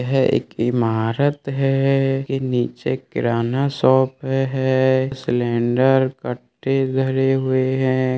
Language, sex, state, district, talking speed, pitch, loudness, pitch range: Hindi, male, Bihar, Darbhanga, 95 wpm, 130 Hz, -19 LUFS, 125-135 Hz